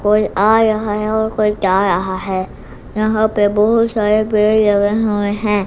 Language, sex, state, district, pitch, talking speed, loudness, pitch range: Hindi, female, Gujarat, Gandhinagar, 210 Hz, 180 wpm, -15 LUFS, 205-215 Hz